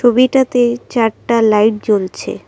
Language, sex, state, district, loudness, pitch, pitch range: Bengali, female, Assam, Kamrup Metropolitan, -14 LUFS, 235 Hz, 215-245 Hz